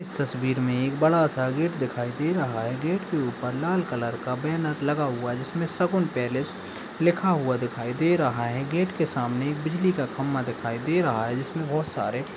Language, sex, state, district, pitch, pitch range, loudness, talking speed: Hindi, male, Uttar Pradesh, Ghazipur, 140 Hz, 125-165 Hz, -26 LUFS, 220 wpm